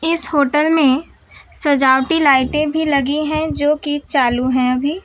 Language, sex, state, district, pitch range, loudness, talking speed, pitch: Hindi, female, Gujarat, Valsad, 265-305 Hz, -16 LUFS, 155 wpm, 290 Hz